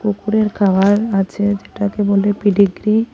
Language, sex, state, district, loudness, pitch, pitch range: Bengali, female, Assam, Hailakandi, -16 LUFS, 205 Hz, 200-210 Hz